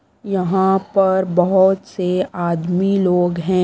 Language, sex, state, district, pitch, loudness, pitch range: Hindi, female, Delhi, New Delhi, 185 Hz, -17 LUFS, 180-190 Hz